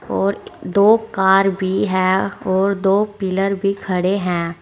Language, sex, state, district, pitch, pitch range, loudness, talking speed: Hindi, female, Uttar Pradesh, Saharanpur, 195 Hz, 185-200 Hz, -18 LUFS, 145 wpm